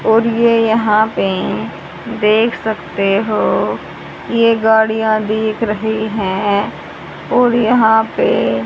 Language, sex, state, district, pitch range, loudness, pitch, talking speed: Hindi, female, Haryana, Jhajjar, 210-225 Hz, -14 LUFS, 220 Hz, 105 wpm